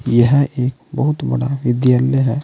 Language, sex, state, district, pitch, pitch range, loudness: Hindi, male, Uttar Pradesh, Saharanpur, 130 Hz, 125-140 Hz, -16 LUFS